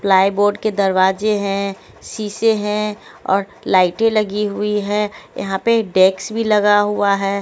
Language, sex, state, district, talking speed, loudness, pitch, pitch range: Hindi, female, Haryana, Jhajjar, 145 wpm, -17 LUFS, 205 Hz, 195-210 Hz